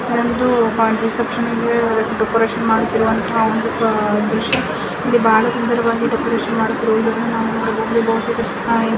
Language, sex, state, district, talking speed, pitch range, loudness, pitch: Kannada, female, Karnataka, Mysore, 45 wpm, 225-235 Hz, -17 LUFS, 230 Hz